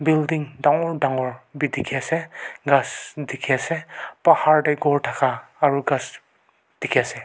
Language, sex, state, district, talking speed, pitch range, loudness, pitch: Nagamese, male, Nagaland, Kohima, 140 wpm, 135-155 Hz, -22 LUFS, 145 Hz